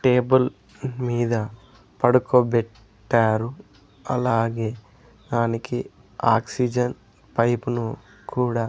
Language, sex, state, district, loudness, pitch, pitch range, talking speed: Telugu, male, Andhra Pradesh, Sri Satya Sai, -23 LUFS, 120 Hz, 115-125 Hz, 70 wpm